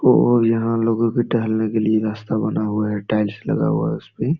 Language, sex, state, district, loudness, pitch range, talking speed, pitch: Hindi, male, Bihar, Jamui, -20 LUFS, 110-115 Hz, 230 wpm, 110 Hz